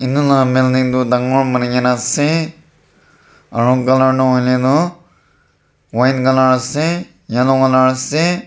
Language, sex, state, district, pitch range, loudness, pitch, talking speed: Nagamese, male, Nagaland, Dimapur, 125-145 Hz, -14 LUFS, 130 Hz, 125 wpm